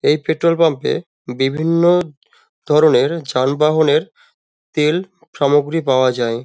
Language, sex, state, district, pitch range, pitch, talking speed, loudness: Bengali, male, West Bengal, Dakshin Dinajpur, 135-165 Hz, 150 Hz, 110 wpm, -16 LUFS